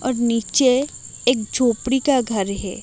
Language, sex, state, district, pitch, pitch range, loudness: Hindi, female, Odisha, Malkangiri, 245 Hz, 220-260 Hz, -20 LUFS